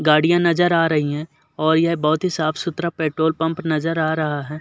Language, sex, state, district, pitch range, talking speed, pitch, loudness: Hindi, male, Uttar Pradesh, Muzaffarnagar, 155-170 Hz, 220 wpm, 160 Hz, -19 LUFS